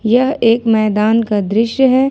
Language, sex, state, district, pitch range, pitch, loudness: Hindi, female, Jharkhand, Ranchi, 215-250 Hz, 230 Hz, -13 LUFS